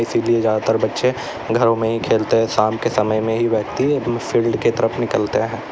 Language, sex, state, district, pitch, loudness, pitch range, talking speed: Hindi, male, Uttar Pradesh, Lalitpur, 115 Hz, -18 LUFS, 110-120 Hz, 200 wpm